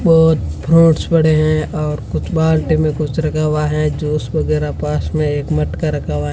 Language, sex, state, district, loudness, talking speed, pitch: Hindi, female, Rajasthan, Bikaner, -16 LUFS, 200 wpm, 150 Hz